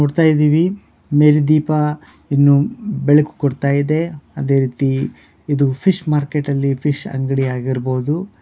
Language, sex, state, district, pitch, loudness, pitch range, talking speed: Kannada, male, Karnataka, Bellary, 145 Hz, -17 LUFS, 140-155 Hz, 120 wpm